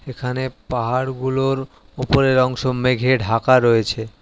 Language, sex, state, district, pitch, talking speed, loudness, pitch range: Bengali, male, West Bengal, Alipurduar, 130 Hz, 100 wpm, -19 LUFS, 115-130 Hz